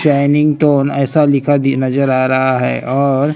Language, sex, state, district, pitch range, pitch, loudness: Hindi, male, Maharashtra, Gondia, 130-145 Hz, 140 Hz, -13 LUFS